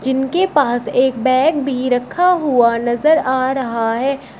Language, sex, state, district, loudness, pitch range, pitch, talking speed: Hindi, female, Uttar Pradesh, Shamli, -16 LUFS, 245-285 Hz, 260 Hz, 150 wpm